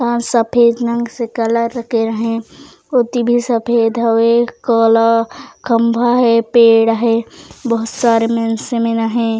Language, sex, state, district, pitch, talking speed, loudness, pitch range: Chhattisgarhi, female, Chhattisgarh, Raigarh, 230 Hz, 135 wpm, -14 LUFS, 230-235 Hz